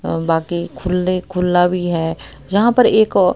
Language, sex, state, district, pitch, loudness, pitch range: Hindi, female, Haryana, Rohtak, 180 Hz, -16 LUFS, 170-185 Hz